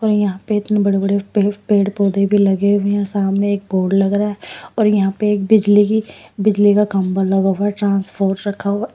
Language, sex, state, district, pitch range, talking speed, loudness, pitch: Hindi, female, Punjab, Pathankot, 195-205 Hz, 220 wpm, -16 LUFS, 200 Hz